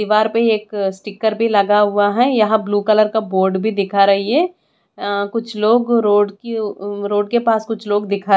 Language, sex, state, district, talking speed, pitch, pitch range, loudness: Hindi, female, Odisha, Khordha, 210 wpm, 210 Hz, 205-225 Hz, -16 LUFS